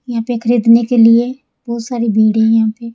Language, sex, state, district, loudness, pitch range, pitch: Hindi, female, Rajasthan, Jaipur, -12 LUFS, 225-240 Hz, 235 Hz